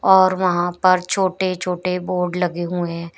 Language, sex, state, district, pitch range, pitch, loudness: Hindi, female, Uttar Pradesh, Shamli, 175-185 Hz, 180 Hz, -19 LUFS